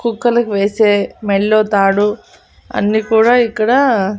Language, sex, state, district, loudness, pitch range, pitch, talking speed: Telugu, female, Andhra Pradesh, Annamaya, -14 LUFS, 205-230 Hz, 215 Hz, 100 wpm